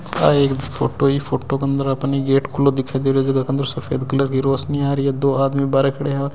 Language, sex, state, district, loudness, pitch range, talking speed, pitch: Hindi, male, Rajasthan, Nagaur, -19 LUFS, 135-140 Hz, 285 wpm, 135 Hz